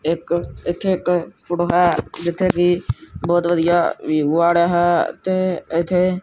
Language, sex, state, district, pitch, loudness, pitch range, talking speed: Punjabi, male, Punjab, Kapurthala, 175 Hz, -19 LUFS, 170-180 Hz, 145 wpm